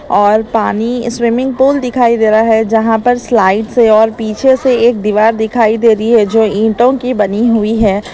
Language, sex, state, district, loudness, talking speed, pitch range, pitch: Hindi, female, Uttar Pradesh, Lalitpur, -11 LUFS, 200 wpm, 220-240 Hz, 225 Hz